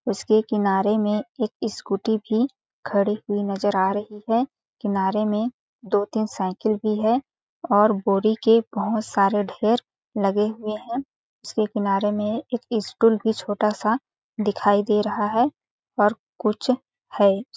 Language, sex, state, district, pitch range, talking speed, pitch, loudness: Hindi, female, Chhattisgarh, Balrampur, 205-225 Hz, 140 wpm, 215 Hz, -23 LUFS